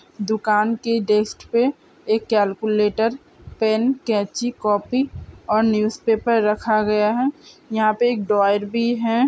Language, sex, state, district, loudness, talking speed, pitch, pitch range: Hindi, female, Uttarakhand, Tehri Garhwal, -20 LUFS, 135 wpm, 220 Hz, 210-235 Hz